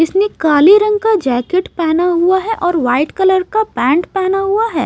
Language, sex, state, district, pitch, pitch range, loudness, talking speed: Hindi, female, Maharashtra, Mumbai Suburban, 365 Hz, 320-400 Hz, -13 LUFS, 195 wpm